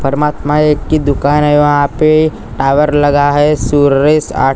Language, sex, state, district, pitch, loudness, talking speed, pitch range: Hindi, male, Maharashtra, Gondia, 145 Hz, -11 LUFS, 170 wpm, 140-150 Hz